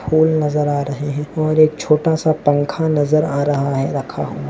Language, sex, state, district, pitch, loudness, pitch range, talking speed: Hindi, male, Goa, North and South Goa, 150 Hz, -17 LUFS, 145-155 Hz, 215 wpm